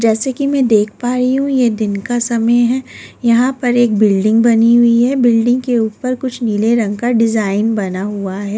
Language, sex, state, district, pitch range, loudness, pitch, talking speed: Hindi, female, Delhi, New Delhi, 215-245 Hz, -14 LUFS, 235 Hz, 210 wpm